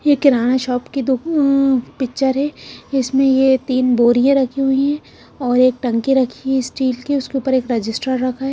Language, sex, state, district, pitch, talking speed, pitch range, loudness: Hindi, female, Punjab, Kapurthala, 265 Hz, 195 wpm, 255-275 Hz, -17 LUFS